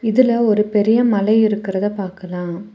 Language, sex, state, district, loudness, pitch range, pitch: Tamil, female, Tamil Nadu, Nilgiris, -17 LUFS, 195-220 Hz, 210 Hz